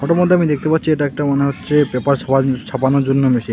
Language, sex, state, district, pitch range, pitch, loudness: Bengali, male, West Bengal, Alipurduar, 135-150 Hz, 140 Hz, -16 LUFS